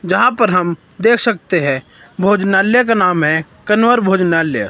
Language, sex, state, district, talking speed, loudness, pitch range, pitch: Hindi, male, Himachal Pradesh, Shimla, 155 wpm, -14 LUFS, 170-225 Hz, 190 Hz